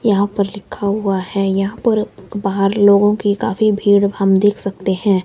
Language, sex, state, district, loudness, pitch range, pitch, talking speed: Hindi, male, Himachal Pradesh, Shimla, -16 LUFS, 195-205 Hz, 200 Hz, 185 wpm